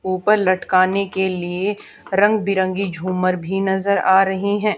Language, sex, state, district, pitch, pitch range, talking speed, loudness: Hindi, female, Haryana, Charkhi Dadri, 190 Hz, 185-200 Hz, 150 wpm, -18 LUFS